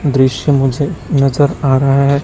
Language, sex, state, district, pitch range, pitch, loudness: Hindi, male, Chhattisgarh, Raipur, 135-145 Hz, 140 Hz, -13 LUFS